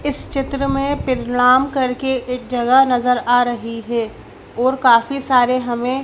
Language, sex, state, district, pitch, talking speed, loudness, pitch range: Hindi, female, Madhya Pradesh, Bhopal, 250 Hz, 150 wpm, -17 LUFS, 245-265 Hz